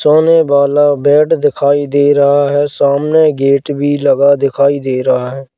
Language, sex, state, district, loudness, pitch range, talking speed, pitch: Hindi, male, Madhya Pradesh, Katni, -11 LUFS, 140-145 Hz, 160 wpm, 145 Hz